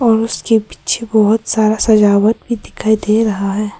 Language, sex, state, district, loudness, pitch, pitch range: Hindi, female, Arunachal Pradesh, Papum Pare, -14 LUFS, 220 Hz, 210-225 Hz